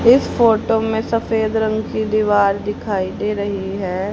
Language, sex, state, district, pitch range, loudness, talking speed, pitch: Hindi, female, Haryana, Charkhi Dadri, 205-220 Hz, -18 LUFS, 160 wpm, 215 Hz